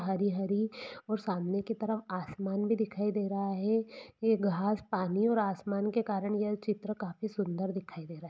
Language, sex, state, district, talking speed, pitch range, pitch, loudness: Hindi, female, Jharkhand, Jamtara, 195 wpm, 195-215 Hz, 205 Hz, -33 LUFS